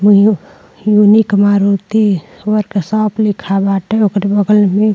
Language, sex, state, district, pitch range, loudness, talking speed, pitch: Bhojpuri, female, Uttar Pradesh, Deoria, 200-215 Hz, -12 LUFS, 120 wpm, 205 Hz